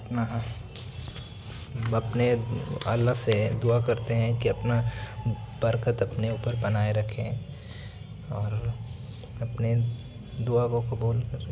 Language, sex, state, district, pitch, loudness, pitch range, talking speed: Hindi, male, Bihar, Jahanabad, 115 Hz, -28 LUFS, 115-120 Hz, 100 wpm